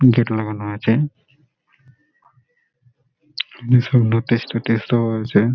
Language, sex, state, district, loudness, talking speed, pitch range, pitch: Bengali, male, West Bengal, Malda, -19 LUFS, 85 wpm, 115-130 Hz, 120 Hz